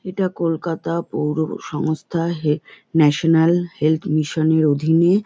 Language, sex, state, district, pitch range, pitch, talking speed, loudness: Bengali, female, West Bengal, North 24 Parganas, 155-170 Hz, 165 Hz, 105 wpm, -19 LUFS